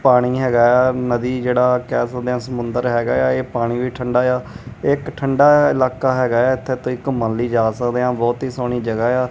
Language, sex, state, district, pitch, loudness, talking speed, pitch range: Punjabi, male, Punjab, Kapurthala, 125 Hz, -18 LUFS, 205 wpm, 120-130 Hz